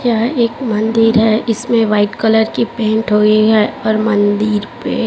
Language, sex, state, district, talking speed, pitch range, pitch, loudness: Hindi, female, Chhattisgarh, Raipur, 165 wpm, 215-230 Hz, 220 Hz, -14 LUFS